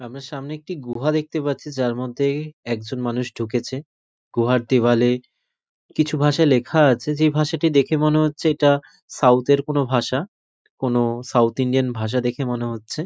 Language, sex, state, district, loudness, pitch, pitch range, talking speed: Bengali, male, West Bengal, North 24 Parganas, -21 LUFS, 135 Hz, 125-150 Hz, 155 wpm